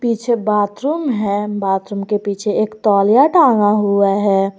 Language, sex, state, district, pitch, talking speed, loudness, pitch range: Hindi, female, Jharkhand, Garhwa, 210 Hz, 145 wpm, -15 LUFS, 200-230 Hz